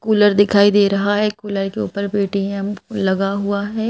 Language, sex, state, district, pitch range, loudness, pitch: Hindi, female, Madhya Pradesh, Bhopal, 200-205 Hz, -18 LUFS, 200 Hz